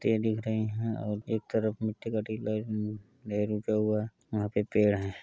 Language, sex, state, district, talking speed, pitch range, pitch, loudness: Hindi, male, Uttar Pradesh, Etah, 185 wpm, 105-110 Hz, 110 Hz, -31 LUFS